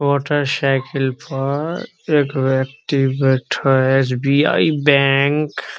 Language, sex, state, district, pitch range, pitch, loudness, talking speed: Hindi, male, Bihar, Araria, 135-145 Hz, 140 Hz, -17 LUFS, 85 wpm